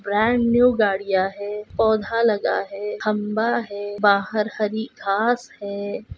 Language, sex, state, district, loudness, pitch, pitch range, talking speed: Hindi, female, Chhattisgarh, Balrampur, -22 LUFS, 210 Hz, 205-225 Hz, 125 wpm